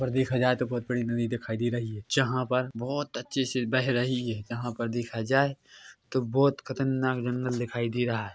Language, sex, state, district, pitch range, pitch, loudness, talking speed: Hindi, male, Chhattisgarh, Korba, 120-130 Hz, 125 Hz, -29 LUFS, 220 wpm